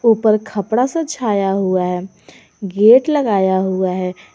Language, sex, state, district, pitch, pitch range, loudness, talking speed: Hindi, female, Jharkhand, Garhwa, 200 Hz, 190-230 Hz, -16 LUFS, 140 wpm